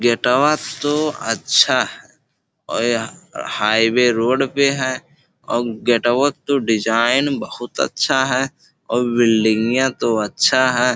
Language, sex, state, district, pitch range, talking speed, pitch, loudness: Bhojpuri, male, Uttar Pradesh, Gorakhpur, 115-135 Hz, 120 wpm, 125 Hz, -17 LUFS